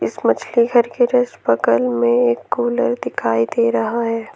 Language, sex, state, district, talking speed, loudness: Hindi, female, Jharkhand, Ranchi, 180 wpm, -17 LUFS